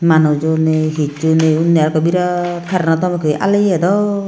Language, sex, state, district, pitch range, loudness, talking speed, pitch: Chakma, female, Tripura, Unakoti, 155-180 Hz, -15 LUFS, 170 wpm, 165 Hz